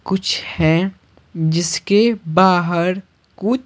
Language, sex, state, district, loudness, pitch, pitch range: Hindi, male, Bihar, Patna, -17 LUFS, 185 Hz, 170-195 Hz